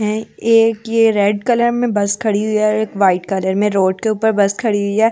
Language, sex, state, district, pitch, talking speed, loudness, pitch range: Hindi, female, Delhi, New Delhi, 215 Hz, 260 wpm, -15 LUFS, 200-225 Hz